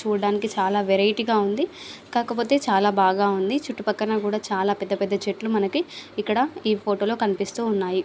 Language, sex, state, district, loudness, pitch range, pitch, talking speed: Telugu, female, Andhra Pradesh, Visakhapatnam, -23 LUFS, 200-225 Hz, 210 Hz, 150 wpm